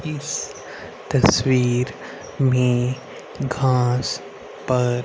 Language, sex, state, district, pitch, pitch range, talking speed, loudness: Hindi, male, Haryana, Rohtak, 125 Hz, 125-135 Hz, 60 wpm, -21 LUFS